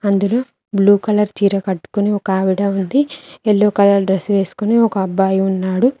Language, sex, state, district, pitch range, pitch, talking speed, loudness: Telugu, female, Telangana, Mahabubabad, 195-210 Hz, 200 Hz, 130 wpm, -16 LUFS